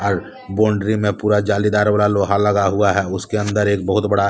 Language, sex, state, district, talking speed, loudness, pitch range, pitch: Hindi, male, Jharkhand, Deoghar, 210 wpm, -17 LUFS, 100-105 Hz, 105 Hz